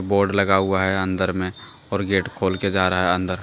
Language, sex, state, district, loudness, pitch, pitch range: Hindi, male, Jharkhand, Deoghar, -21 LUFS, 95 Hz, 95-100 Hz